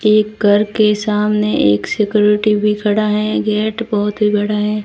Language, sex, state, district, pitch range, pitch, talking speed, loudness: Hindi, female, Rajasthan, Barmer, 210-215 Hz, 210 Hz, 175 wpm, -15 LUFS